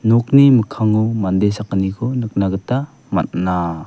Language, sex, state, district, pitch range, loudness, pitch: Garo, male, Meghalaya, West Garo Hills, 95-120 Hz, -17 LUFS, 110 Hz